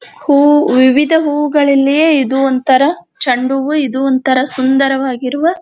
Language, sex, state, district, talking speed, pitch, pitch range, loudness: Kannada, female, Karnataka, Dharwad, 120 wpm, 275 Hz, 260-295 Hz, -12 LUFS